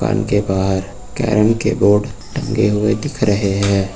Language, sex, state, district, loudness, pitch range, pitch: Hindi, male, Uttar Pradesh, Lucknow, -17 LUFS, 100-115 Hz, 105 Hz